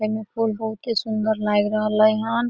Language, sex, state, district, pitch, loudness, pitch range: Maithili, female, Bihar, Samastipur, 220 Hz, -22 LUFS, 215-225 Hz